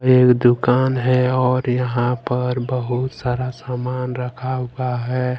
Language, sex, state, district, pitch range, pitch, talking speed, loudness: Hindi, male, Jharkhand, Ranchi, 125-130 Hz, 125 Hz, 135 wpm, -19 LUFS